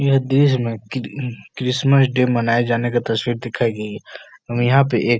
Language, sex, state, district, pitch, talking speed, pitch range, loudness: Hindi, male, Uttar Pradesh, Etah, 120 Hz, 205 wpm, 120-130 Hz, -19 LUFS